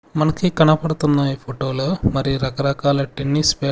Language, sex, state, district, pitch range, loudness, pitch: Telugu, male, Andhra Pradesh, Sri Satya Sai, 135-155 Hz, -19 LUFS, 140 Hz